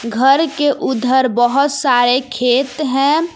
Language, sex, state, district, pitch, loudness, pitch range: Hindi, female, Jharkhand, Palamu, 265 Hz, -14 LUFS, 250-285 Hz